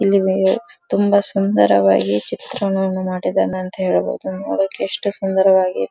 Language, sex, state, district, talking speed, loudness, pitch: Kannada, female, Karnataka, Dharwad, 100 wpm, -18 LUFS, 185 Hz